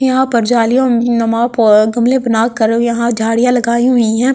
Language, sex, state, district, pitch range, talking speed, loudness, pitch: Hindi, female, Delhi, New Delhi, 230-245 Hz, 140 wpm, -12 LUFS, 235 Hz